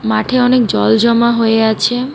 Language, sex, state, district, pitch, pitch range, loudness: Bengali, female, West Bengal, Alipurduar, 235 Hz, 220-245 Hz, -12 LUFS